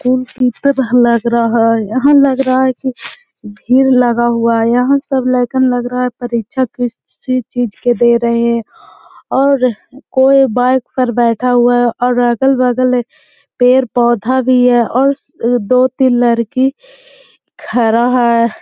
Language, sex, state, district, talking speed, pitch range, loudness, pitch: Hindi, female, Bihar, Gaya, 135 wpm, 235-260 Hz, -12 LUFS, 250 Hz